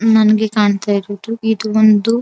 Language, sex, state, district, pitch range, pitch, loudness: Kannada, female, Karnataka, Dharwad, 205-220 Hz, 215 Hz, -14 LUFS